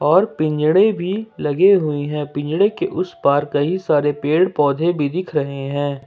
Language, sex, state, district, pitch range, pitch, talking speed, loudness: Hindi, male, Jharkhand, Ranchi, 145-190 Hz, 150 Hz, 180 wpm, -18 LUFS